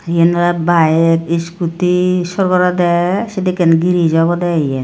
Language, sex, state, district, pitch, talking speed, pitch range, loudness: Chakma, female, Tripura, Dhalai, 175 Hz, 110 wpm, 165-180 Hz, -14 LUFS